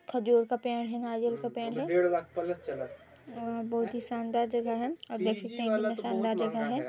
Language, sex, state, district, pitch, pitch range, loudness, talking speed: Hindi, female, Chhattisgarh, Balrampur, 235 Hz, 225-240 Hz, -32 LUFS, 190 wpm